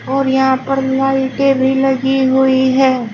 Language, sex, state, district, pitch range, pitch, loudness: Hindi, female, Uttar Pradesh, Shamli, 265-270 Hz, 265 Hz, -14 LUFS